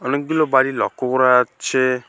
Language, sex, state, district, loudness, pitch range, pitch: Bengali, male, West Bengal, Alipurduar, -18 LUFS, 125-135 Hz, 130 Hz